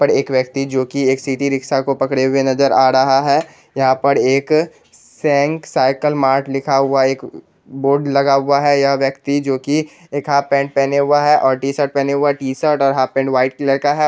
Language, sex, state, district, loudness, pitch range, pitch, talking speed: Hindi, male, Bihar, Jahanabad, -16 LUFS, 135-140 Hz, 135 Hz, 215 wpm